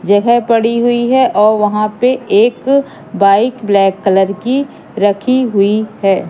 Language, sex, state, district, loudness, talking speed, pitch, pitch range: Hindi, female, Madhya Pradesh, Katni, -12 LUFS, 145 wpm, 220 Hz, 200-250 Hz